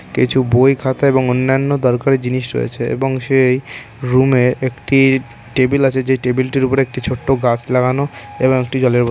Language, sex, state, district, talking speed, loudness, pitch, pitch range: Bengali, male, West Bengal, North 24 Parganas, 180 wpm, -15 LUFS, 130 Hz, 125-135 Hz